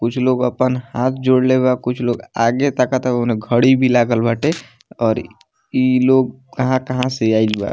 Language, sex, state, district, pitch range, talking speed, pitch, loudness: Bhojpuri, male, Bihar, Muzaffarpur, 120-130 Hz, 170 wpm, 125 Hz, -17 LUFS